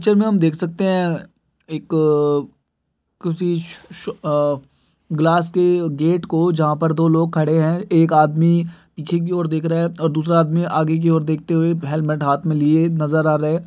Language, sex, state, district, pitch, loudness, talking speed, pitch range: Hindi, male, Uttar Pradesh, Gorakhpur, 165 Hz, -18 LUFS, 200 wpm, 155-170 Hz